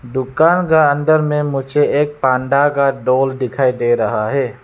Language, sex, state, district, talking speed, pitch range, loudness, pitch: Hindi, male, Arunachal Pradesh, Lower Dibang Valley, 170 wpm, 130-145 Hz, -15 LUFS, 135 Hz